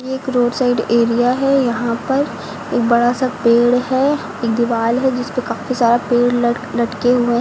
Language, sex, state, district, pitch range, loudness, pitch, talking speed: Hindi, female, Uttar Pradesh, Lucknow, 235-255 Hz, -16 LUFS, 240 Hz, 185 wpm